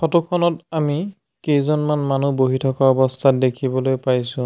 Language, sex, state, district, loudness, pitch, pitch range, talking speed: Assamese, male, Assam, Sonitpur, -19 LUFS, 135 Hz, 130-155 Hz, 135 wpm